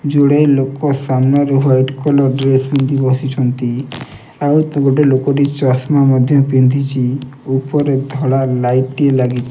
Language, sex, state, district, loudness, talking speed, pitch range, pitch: Odia, male, Odisha, Nuapada, -14 LUFS, 120 wpm, 130-140 Hz, 135 Hz